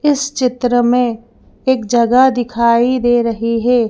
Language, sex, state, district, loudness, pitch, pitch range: Hindi, female, Madhya Pradesh, Bhopal, -14 LUFS, 245 Hz, 235-255 Hz